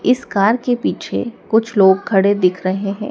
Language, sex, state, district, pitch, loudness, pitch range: Hindi, female, Madhya Pradesh, Dhar, 205 Hz, -16 LUFS, 195-230 Hz